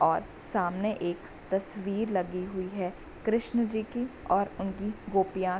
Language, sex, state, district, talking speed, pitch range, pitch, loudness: Hindi, female, Bihar, Bhagalpur, 150 wpm, 185-220 Hz, 195 Hz, -31 LUFS